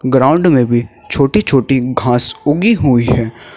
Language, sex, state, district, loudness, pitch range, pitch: Hindi, male, Uttar Pradesh, Shamli, -12 LUFS, 120-140 Hz, 130 Hz